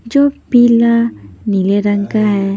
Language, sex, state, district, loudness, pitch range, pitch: Hindi, female, Maharashtra, Mumbai Suburban, -13 LUFS, 200-235 Hz, 215 Hz